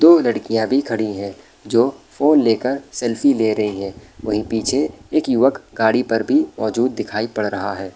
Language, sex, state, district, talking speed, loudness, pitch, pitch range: Hindi, male, Bihar, Saharsa, 190 wpm, -19 LUFS, 115 Hz, 105-130 Hz